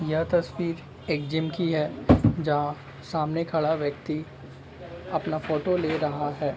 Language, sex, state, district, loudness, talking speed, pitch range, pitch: Hindi, male, Bihar, Jamui, -27 LUFS, 135 wpm, 145-160 Hz, 155 Hz